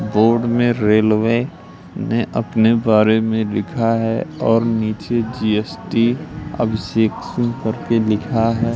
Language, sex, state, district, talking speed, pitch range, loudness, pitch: Hindi, male, Madhya Pradesh, Katni, 115 wpm, 110-115 Hz, -18 LUFS, 115 Hz